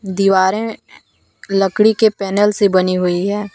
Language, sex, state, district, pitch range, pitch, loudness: Hindi, female, Jharkhand, Deoghar, 190-210 Hz, 195 Hz, -15 LUFS